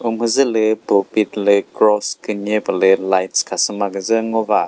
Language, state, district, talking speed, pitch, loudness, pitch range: Chakhesang, Nagaland, Dimapur, 140 wpm, 105 Hz, -17 LUFS, 100-110 Hz